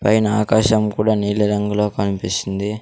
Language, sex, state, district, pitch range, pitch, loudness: Telugu, male, Andhra Pradesh, Sri Satya Sai, 105-110 Hz, 105 Hz, -18 LUFS